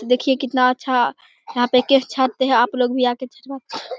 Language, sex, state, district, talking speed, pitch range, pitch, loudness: Hindi, male, Bihar, Begusarai, 105 wpm, 245-265 Hz, 255 Hz, -18 LUFS